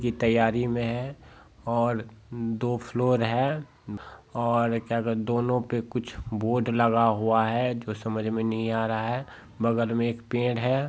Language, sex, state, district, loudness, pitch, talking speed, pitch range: Hindi, male, Bihar, Jamui, -27 LUFS, 115 Hz, 160 wpm, 115-120 Hz